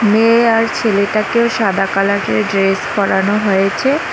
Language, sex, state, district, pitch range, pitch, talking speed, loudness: Bengali, female, West Bengal, Cooch Behar, 195-225 Hz, 205 Hz, 130 wpm, -14 LUFS